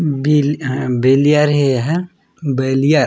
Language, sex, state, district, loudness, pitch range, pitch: Chhattisgarhi, male, Chhattisgarh, Raigarh, -15 LUFS, 135-150 Hz, 145 Hz